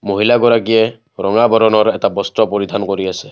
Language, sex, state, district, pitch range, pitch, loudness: Assamese, male, Assam, Kamrup Metropolitan, 100-115 Hz, 110 Hz, -14 LUFS